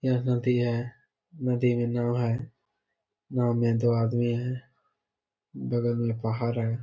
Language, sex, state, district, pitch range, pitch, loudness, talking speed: Hindi, male, Bihar, Saharsa, 120-125 Hz, 120 Hz, -27 LUFS, 140 wpm